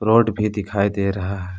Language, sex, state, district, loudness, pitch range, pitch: Hindi, male, Jharkhand, Palamu, -21 LUFS, 100-105 Hz, 100 Hz